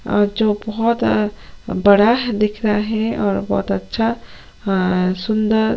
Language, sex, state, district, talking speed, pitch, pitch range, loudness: Hindi, female, Chhattisgarh, Sukma, 145 wpm, 210 Hz, 195-220 Hz, -18 LUFS